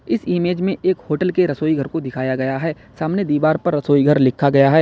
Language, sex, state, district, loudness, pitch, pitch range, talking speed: Hindi, male, Uttar Pradesh, Lalitpur, -18 LUFS, 155 Hz, 140-175 Hz, 250 wpm